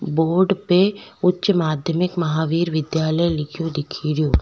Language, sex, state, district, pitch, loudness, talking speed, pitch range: Rajasthani, female, Rajasthan, Nagaur, 165 Hz, -20 LUFS, 110 wpm, 155-180 Hz